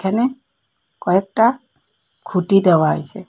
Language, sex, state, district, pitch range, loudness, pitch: Bengali, female, Assam, Hailakandi, 185-235 Hz, -17 LUFS, 195 Hz